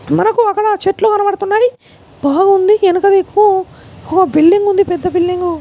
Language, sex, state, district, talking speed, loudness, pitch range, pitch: Telugu, male, Andhra Pradesh, Chittoor, 140 wpm, -12 LUFS, 360-415 Hz, 390 Hz